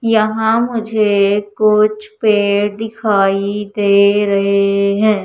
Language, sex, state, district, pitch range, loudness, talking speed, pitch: Hindi, female, Madhya Pradesh, Umaria, 200-215 Hz, -14 LUFS, 90 wpm, 210 Hz